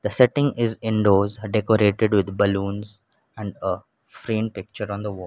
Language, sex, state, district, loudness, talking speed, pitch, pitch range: English, male, Sikkim, Gangtok, -22 LUFS, 150 wpm, 105 Hz, 100-110 Hz